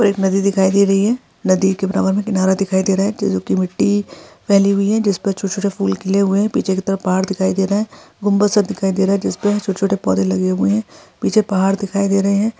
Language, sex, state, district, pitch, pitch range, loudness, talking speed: Hindi, female, Chhattisgarh, Sarguja, 195 Hz, 190-200 Hz, -17 LUFS, 265 wpm